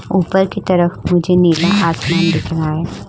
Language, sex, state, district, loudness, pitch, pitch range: Hindi, female, Uttar Pradesh, Budaun, -15 LUFS, 175 Hz, 165-185 Hz